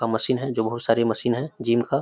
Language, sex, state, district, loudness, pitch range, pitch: Hindi, male, Bihar, Samastipur, -23 LUFS, 115-130 Hz, 120 Hz